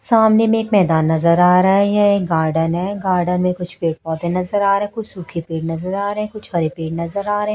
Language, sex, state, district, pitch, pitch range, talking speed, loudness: Hindi, female, Chhattisgarh, Raipur, 180 Hz, 165-205 Hz, 255 wpm, -17 LUFS